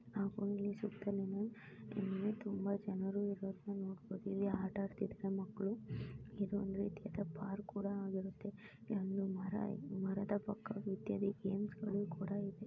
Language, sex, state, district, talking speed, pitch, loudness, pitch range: Kannada, female, Karnataka, Mysore, 120 wpm, 200 Hz, -42 LUFS, 195-205 Hz